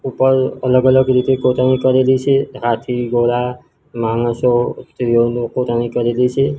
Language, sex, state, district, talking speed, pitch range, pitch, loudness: Gujarati, male, Gujarat, Gandhinagar, 125 wpm, 120-130 Hz, 125 Hz, -16 LUFS